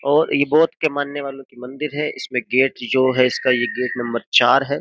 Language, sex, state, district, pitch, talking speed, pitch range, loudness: Hindi, male, Uttar Pradesh, Jyotiba Phule Nagar, 130 Hz, 235 wpm, 125-145 Hz, -19 LUFS